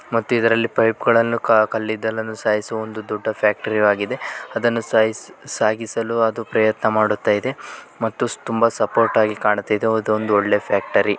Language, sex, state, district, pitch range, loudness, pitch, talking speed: Kannada, male, Karnataka, Bellary, 105-115 Hz, -19 LUFS, 110 Hz, 150 wpm